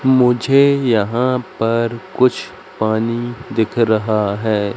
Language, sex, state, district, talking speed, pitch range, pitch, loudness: Hindi, male, Madhya Pradesh, Katni, 100 wpm, 110-130 Hz, 120 Hz, -16 LUFS